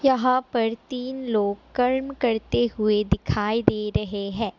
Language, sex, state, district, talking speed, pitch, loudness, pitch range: Hindi, female, Assam, Kamrup Metropolitan, 145 wpm, 225 Hz, -24 LUFS, 210-255 Hz